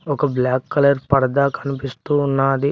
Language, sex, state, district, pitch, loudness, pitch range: Telugu, male, Telangana, Mahabubabad, 140 Hz, -19 LUFS, 135-145 Hz